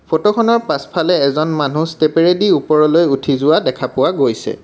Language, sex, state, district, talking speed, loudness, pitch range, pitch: Assamese, male, Assam, Kamrup Metropolitan, 140 wpm, -14 LUFS, 140-170 Hz, 155 Hz